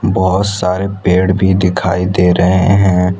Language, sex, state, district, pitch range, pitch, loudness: Hindi, male, Gujarat, Valsad, 90-95 Hz, 95 Hz, -12 LUFS